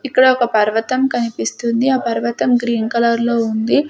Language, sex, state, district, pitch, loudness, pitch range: Telugu, female, Andhra Pradesh, Sri Satya Sai, 235 Hz, -16 LUFS, 230-255 Hz